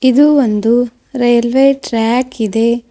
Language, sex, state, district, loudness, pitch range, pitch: Kannada, female, Karnataka, Bidar, -13 LUFS, 230-260 Hz, 240 Hz